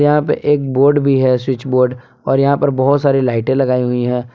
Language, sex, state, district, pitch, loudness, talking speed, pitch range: Hindi, male, Jharkhand, Palamu, 130 Hz, -14 LUFS, 235 wpm, 125-140 Hz